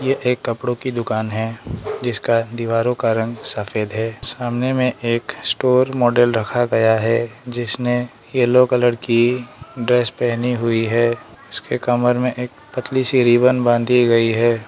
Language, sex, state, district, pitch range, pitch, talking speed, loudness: Hindi, male, Arunachal Pradesh, Lower Dibang Valley, 115-125 Hz, 120 Hz, 150 wpm, -18 LUFS